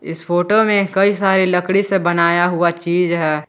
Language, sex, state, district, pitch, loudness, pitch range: Hindi, male, Jharkhand, Garhwa, 180 Hz, -15 LUFS, 170-195 Hz